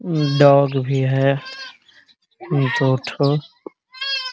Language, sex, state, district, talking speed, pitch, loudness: Hindi, male, Bihar, Araria, 85 wpm, 145 Hz, -18 LUFS